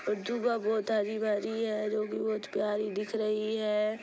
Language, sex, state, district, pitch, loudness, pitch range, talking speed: Hindi, female, Bihar, Sitamarhi, 215 Hz, -31 LUFS, 210-220 Hz, 195 wpm